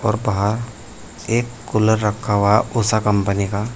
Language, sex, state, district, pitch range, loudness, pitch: Hindi, male, Uttar Pradesh, Saharanpur, 100-115 Hz, -19 LUFS, 105 Hz